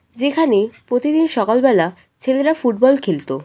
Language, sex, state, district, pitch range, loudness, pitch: Bengali, female, West Bengal, Kolkata, 220-280 Hz, -17 LUFS, 250 Hz